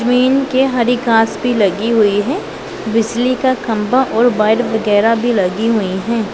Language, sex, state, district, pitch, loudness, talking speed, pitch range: Hindi, female, Punjab, Pathankot, 230 Hz, -14 LUFS, 170 wpm, 215-245 Hz